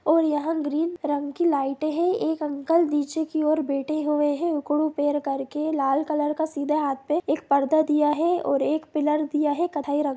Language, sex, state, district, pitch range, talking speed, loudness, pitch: Hindi, female, Jharkhand, Jamtara, 290-315 Hz, 185 wpm, -24 LUFS, 300 Hz